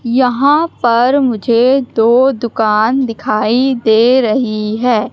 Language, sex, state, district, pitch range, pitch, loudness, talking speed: Hindi, female, Madhya Pradesh, Katni, 220-260 Hz, 240 Hz, -12 LUFS, 105 wpm